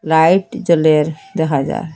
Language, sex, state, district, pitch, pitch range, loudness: Bengali, female, Assam, Hailakandi, 160 Hz, 155-180 Hz, -15 LUFS